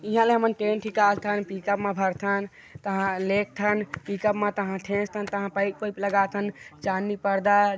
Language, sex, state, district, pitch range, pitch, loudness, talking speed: Chhattisgarhi, male, Chhattisgarh, Korba, 195-205 Hz, 200 Hz, -26 LUFS, 160 wpm